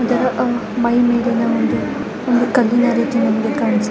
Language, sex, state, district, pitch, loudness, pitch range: Kannada, female, Karnataka, Mysore, 240 Hz, -17 LUFS, 235-245 Hz